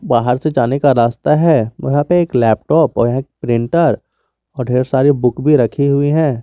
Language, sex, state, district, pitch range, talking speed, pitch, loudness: Hindi, male, Jharkhand, Garhwa, 120-150 Hz, 185 wpm, 135 Hz, -14 LUFS